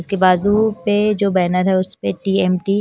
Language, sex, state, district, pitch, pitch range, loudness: Hindi, female, Punjab, Kapurthala, 195 Hz, 185-205 Hz, -17 LUFS